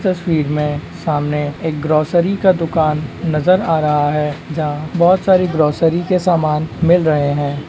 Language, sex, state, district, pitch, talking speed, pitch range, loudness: Hindi, male, West Bengal, Purulia, 155 Hz, 155 wpm, 150-175 Hz, -16 LUFS